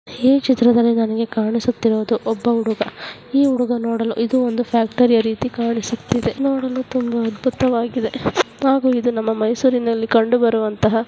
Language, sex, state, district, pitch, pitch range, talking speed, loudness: Kannada, female, Karnataka, Mysore, 235 Hz, 225-250 Hz, 125 wpm, -18 LUFS